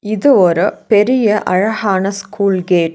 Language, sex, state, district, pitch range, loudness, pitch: Tamil, female, Tamil Nadu, Nilgiris, 185-215 Hz, -13 LUFS, 200 Hz